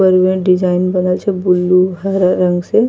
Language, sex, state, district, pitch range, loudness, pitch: Angika, female, Bihar, Bhagalpur, 180-190 Hz, -14 LUFS, 185 Hz